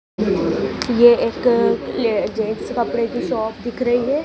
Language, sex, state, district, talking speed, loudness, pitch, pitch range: Hindi, female, Madhya Pradesh, Dhar, 140 wpm, -19 LUFS, 235 Hz, 220-245 Hz